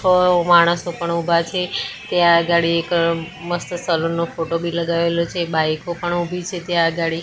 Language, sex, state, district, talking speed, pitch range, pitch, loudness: Gujarati, female, Gujarat, Gandhinagar, 165 wpm, 170-175 Hz, 170 Hz, -19 LUFS